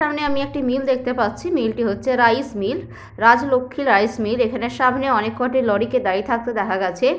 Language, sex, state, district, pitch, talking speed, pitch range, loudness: Bengali, female, West Bengal, Paschim Medinipur, 245 Hz, 190 wpm, 220-260 Hz, -19 LUFS